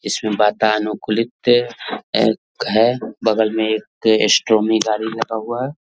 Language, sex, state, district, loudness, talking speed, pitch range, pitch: Hindi, male, Bihar, Vaishali, -18 LUFS, 125 wpm, 110-115 Hz, 110 Hz